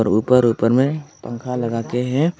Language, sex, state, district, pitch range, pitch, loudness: Hindi, male, Arunachal Pradesh, Longding, 115-130 Hz, 125 Hz, -18 LUFS